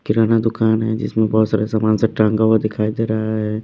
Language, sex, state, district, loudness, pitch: Hindi, male, Bihar, West Champaran, -17 LUFS, 110 Hz